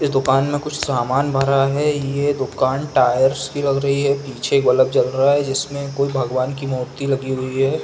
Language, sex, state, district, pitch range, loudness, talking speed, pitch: Hindi, male, Uttar Pradesh, Jalaun, 130-140 Hz, -19 LUFS, 215 wpm, 135 Hz